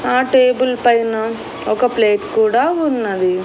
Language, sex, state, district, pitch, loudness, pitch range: Telugu, female, Andhra Pradesh, Annamaya, 235 Hz, -16 LUFS, 220-255 Hz